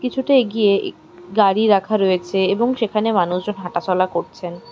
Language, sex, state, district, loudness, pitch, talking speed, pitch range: Bengali, female, West Bengal, Darjeeling, -18 LUFS, 200 Hz, 140 wpm, 180-220 Hz